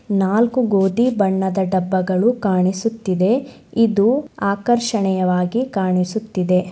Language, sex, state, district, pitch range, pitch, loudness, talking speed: Kannada, female, Karnataka, Shimoga, 185-230 Hz, 200 Hz, -18 LUFS, 70 wpm